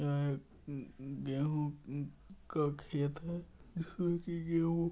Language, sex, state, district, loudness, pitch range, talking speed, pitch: Hindi, male, Bihar, Supaul, -38 LUFS, 145-170 Hz, 110 wpm, 150 Hz